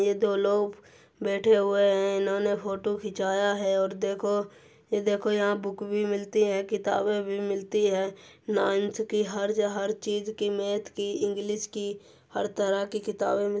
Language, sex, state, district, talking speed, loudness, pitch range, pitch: Hindi, female, Uttar Pradesh, Muzaffarnagar, 170 wpm, -28 LUFS, 200-210 Hz, 205 Hz